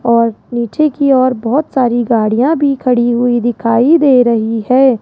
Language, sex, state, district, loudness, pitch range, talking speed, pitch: Hindi, female, Rajasthan, Jaipur, -12 LUFS, 235-270 Hz, 170 wpm, 245 Hz